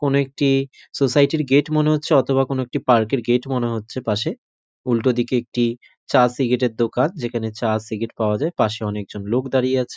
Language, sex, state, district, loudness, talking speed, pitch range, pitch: Bengali, male, West Bengal, North 24 Parganas, -20 LUFS, 185 wpm, 115-135 Hz, 125 Hz